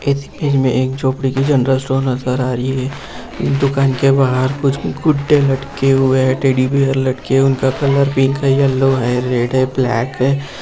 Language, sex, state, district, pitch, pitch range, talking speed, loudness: Hindi, male, Bihar, Jamui, 135 Hz, 130-140 Hz, 190 wpm, -15 LUFS